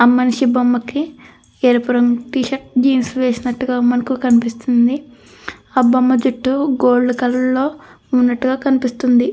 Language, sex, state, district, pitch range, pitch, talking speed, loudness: Telugu, female, Andhra Pradesh, Krishna, 245-260 Hz, 250 Hz, 120 wpm, -16 LUFS